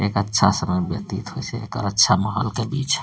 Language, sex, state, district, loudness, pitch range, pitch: Angika, male, Bihar, Bhagalpur, -21 LUFS, 100-115 Hz, 105 Hz